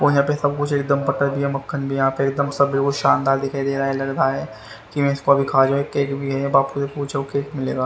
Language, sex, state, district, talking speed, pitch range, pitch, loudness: Hindi, male, Haryana, Rohtak, 250 wpm, 135-140 Hz, 140 Hz, -20 LUFS